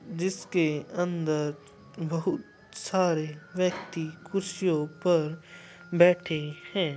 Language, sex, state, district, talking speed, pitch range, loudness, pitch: Hindi, male, Uttar Pradesh, Muzaffarnagar, 75 wpm, 155-180 Hz, -28 LUFS, 175 Hz